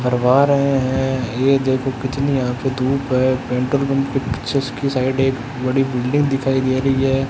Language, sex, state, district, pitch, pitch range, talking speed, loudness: Hindi, male, Rajasthan, Bikaner, 130 Hz, 130-135 Hz, 190 wpm, -18 LUFS